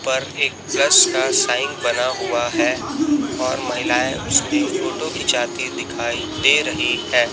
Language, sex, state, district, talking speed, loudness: Hindi, male, Chhattisgarh, Raipur, 140 wpm, -18 LUFS